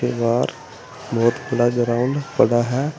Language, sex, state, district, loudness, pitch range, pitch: Hindi, male, Uttar Pradesh, Saharanpur, -20 LUFS, 120-130 Hz, 120 Hz